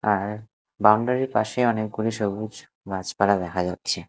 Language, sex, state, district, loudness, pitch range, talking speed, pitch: Bengali, male, Odisha, Malkangiri, -24 LUFS, 100-110 Hz, 130 wpm, 105 Hz